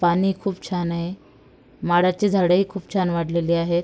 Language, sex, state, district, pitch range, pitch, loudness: Marathi, female, Maharashtra, Sindhudurg, 170-190 Hz, 175 Hz, -22 LUFS